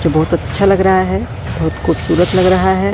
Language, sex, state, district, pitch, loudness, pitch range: Hindi, male, Madhya Pradesh, Katni, 185 Hz, -14 LUFS, 175-190 Hz